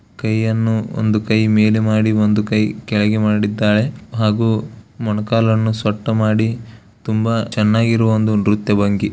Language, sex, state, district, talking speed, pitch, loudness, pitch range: Kannada, male, Karnataka, Bellary, 120 wpm, 110 Hz, -17 LUFS, 105-110 Hz